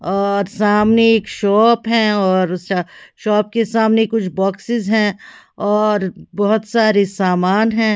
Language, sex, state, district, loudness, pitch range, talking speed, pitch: Hindi, female, Haryana, Charkhi Dadri, -16 LUFS, 195-225 Hz, 135 wpm, 210 Hz